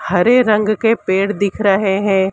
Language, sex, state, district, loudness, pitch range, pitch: Hindi, female, Maharashtra, Mumbai Suburban, -15 LUFS, 195-215 Hz, 200 Hz